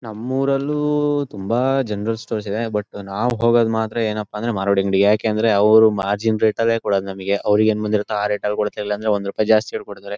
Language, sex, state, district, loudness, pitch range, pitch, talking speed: Kannada, male, Karnataka, Shimoga, -19 LUFS, 105-115 Hz, 110 Hz, 195 wpm